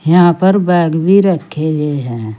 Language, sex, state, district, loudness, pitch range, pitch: Hindi, female, Uttar Pradesh, Saharanpur, -12 LUFS, 150-180 Hz, 165 Hz